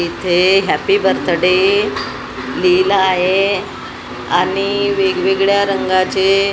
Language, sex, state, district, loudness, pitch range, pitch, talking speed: Marathi, female, Maharashtra, Gondia, -14 LUFS, 185-200 Hz, 195 Hz, 85 wpm